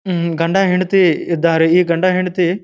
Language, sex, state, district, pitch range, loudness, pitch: Kannada, male, Karnataka, Bijapur, 170-185 Hz, -15 LUFS, 180 Hz